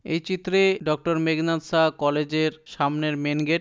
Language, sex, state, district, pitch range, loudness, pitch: Bengali, male, West Bengal, Dakshin Dinajpur, 150-170 Hz, -24 LUFS, 160 Hz